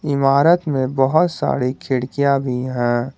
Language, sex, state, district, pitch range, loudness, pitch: Hindi, male, Jharkhand, Garhwa, 125-140 Hz, -18 LUFS, 135 Hz